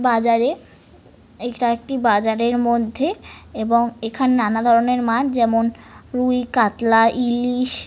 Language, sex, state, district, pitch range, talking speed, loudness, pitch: Bengali, female, West Bengal, North 24 Parganas, 230-250 Hz, 105 wpm, -18 LUFS, 235 Hz